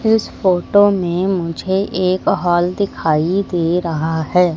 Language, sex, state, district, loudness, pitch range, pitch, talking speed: Hindi, female, Madhya Pradesh, Katni, -16 LUFS, 170-195 Hz, 180 Hz, 130 wpm